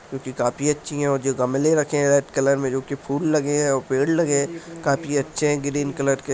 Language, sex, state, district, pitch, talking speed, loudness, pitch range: Angika, male, Bihar, Supaul, 140 Hz, 255 wpm, -22 LUFS, 135-150 Hz